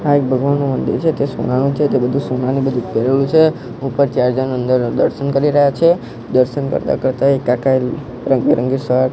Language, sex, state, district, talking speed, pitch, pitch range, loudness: Gujarati, male, Gujarat, Gandhinagar, 205 wpm, 135 Hz, 125-140 Hz, -16 LUFS